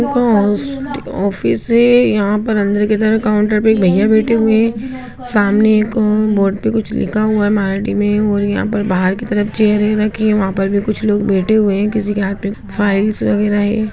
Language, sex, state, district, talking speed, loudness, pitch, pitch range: Hindi, male, Bihar, Lakhisarai, 230 wpm, -14 LUFS, 210 Hz, 205-220 Hz